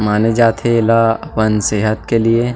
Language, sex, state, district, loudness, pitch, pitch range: Chhattisgarhi, male, Chhattisgarh, Sarguja, -14 LUFS, 115 Hz, 110-115 Hz